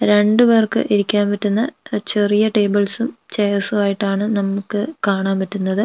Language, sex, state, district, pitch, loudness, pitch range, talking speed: Malayalam, female, Kerala, Wayanad, 205 Hz, -17 LUFS, 200-215 Hz, 115 wpm